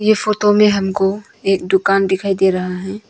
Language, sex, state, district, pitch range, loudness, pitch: Hindi, female, Arunachal Pradesh, Longding, 190-210 Hz, -16 LUFS, 195 Hz